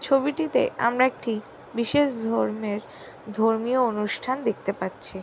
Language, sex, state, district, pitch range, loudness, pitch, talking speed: Bengali, female, West Bengal, Jhargram, 215-265 Hz, -25 LUFS, 235 Hz, 105 wpm